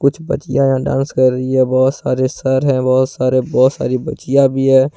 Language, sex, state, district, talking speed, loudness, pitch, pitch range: Hindi, male, Jharkhand, Ranchi, 220 wpm, -15 LUFS, 130 Hz, 130-135 Hz